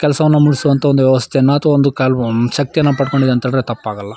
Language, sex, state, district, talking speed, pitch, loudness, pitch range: Kannada, male, Karnataka, Shimoga, 160 wpm, 135 Hz, -14 LUFS, 125-145 Hz